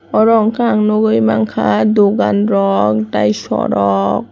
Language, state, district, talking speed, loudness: Kokborok, Tripura, West Tripura, 125 wpm, -13 LUFS